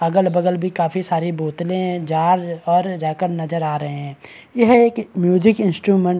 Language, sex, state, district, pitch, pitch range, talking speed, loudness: Hindi, male, Bihar, Araria, 180 Hz, 165-185 Hz, 165 wpm, -18 LUFS